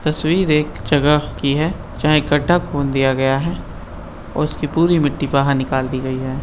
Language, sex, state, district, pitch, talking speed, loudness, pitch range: Hindi, male, Bihar, Madhepura, 145 Hz, 205 wpm, -18 LUFS, 130-150 Hz